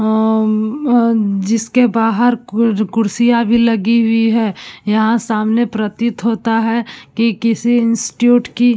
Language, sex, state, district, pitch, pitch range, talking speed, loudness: Hindi, female, Uttar Pradesh, Budaun, 230 Hz, 220-235 Hz, 130 wpm, -14 LUFS